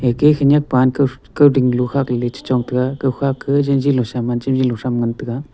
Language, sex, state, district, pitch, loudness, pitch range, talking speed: Wancho, male, Arunachal Pradesh, Longding, 130 Hz, -17 LUFS, 125-140 Hz, 185 wpm